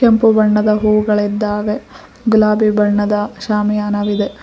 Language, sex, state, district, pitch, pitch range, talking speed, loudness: Kannada, female, Karnataka, Koppal, 210 Hz, 205-215 Hz, 80 wpm, -15 LUFS